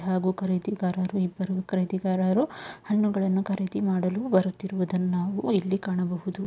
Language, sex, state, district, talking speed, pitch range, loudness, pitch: Kannada, female, Karnataka, Mysore, 95 wpm, 185-195 Hz, -27 LUFS, 190 Hz